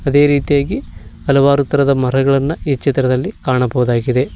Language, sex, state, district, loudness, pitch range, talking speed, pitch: Kannada, male, Karnataka, Koppal, -15 LUFS, 130-140 Hz, 110 wpm, 140 Hz